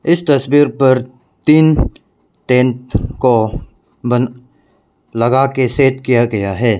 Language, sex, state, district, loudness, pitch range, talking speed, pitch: Hindi, male, Arunachal Pradesh, Lower Dibang Valley, -14 LUFS, 120-135 Hz, 115 wpm, 125 Hz